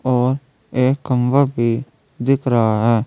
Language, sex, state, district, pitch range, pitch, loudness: Hindi, male, Uttar Pradesh, Saharanpur, 115-135 Hz, 125 Hz, -18 LUFS